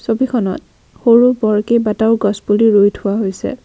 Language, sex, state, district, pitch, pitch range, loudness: Assamese, female, Assam, Kamrup Metropolitan, 220 Hz, 205-235 Hz, -14 LUFS